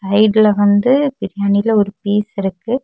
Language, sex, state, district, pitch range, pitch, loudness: Tamil, female, Tamil Nadu, Kanyakumari, 200-220 Hz, 205 Hz, -15 LUFS